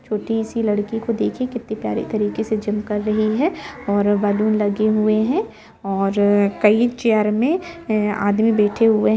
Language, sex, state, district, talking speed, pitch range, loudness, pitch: Hindi, female, Jharkhand, Jamtara, 175 wpm, 205-225 Hz, -19 LUFS, 215 Hz